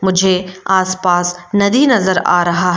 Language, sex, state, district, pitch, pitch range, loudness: Hindi, female, Arunachal Pradesh, Lower Dibang Valley, 185 Hz, 175-190 Hz, -14 LUFS